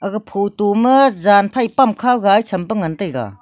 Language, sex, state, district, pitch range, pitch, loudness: Wancho, female, Arunachal Pradesh, Longding, 195-235 Hz, 205 Hz, -15 LUFS